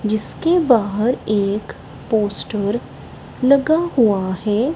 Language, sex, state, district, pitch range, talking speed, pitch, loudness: Hindi, male, Punjab, Kapurthala, 205-260 Hz, 90 wpm, 220 Hz, -18 LUFS